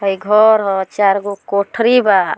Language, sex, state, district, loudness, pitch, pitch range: Bhojpuri, female, Bihar, Muzaffarpur, -14 LUFS, 200 Hz, 195-215 Hz